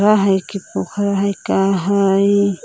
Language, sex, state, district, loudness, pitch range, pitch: Magahi, female, Jharkhand, Palamu, -17 LUFS, 195-200 Hz, 200 Hz